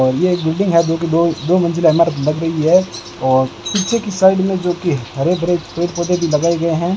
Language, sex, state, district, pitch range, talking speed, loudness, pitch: Hindi, male, Rajasthan, Bikaner, 160-180 Hz, 225 wpm, -16 LUFS, 170 Hz